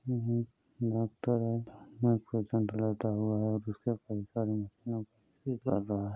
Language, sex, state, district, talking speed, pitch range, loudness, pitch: Hindi, male, Uttar Pradesh, Budaun, 125 wpm, 105-115 Hz, -34 LUFS, 110 Hz